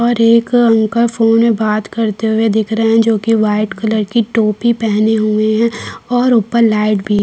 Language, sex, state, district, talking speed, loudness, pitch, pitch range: Hindi, female, Chhattisgarh, Kabirdham, 200 wpm, -13 LUFS, 225 Hz, 215-230 Hz